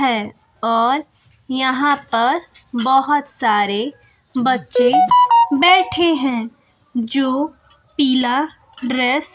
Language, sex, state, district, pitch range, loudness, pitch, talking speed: Hindi, female, Bihar, West Champaran, 245-290 Hz, -17 LUFS, 260 Hz, 85 wpm